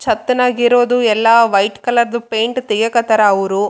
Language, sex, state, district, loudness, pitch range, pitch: Kannada, female, Karnataka, Raichur, -14 LUFS, 215-245 Hz, 230 Hz